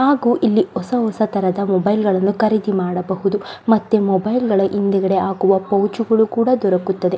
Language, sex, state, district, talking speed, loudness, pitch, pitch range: Kannada, female, Karnataka, Belgaum, 140 wpm, -17 LUFS, 200 Hz, 190-220 Hz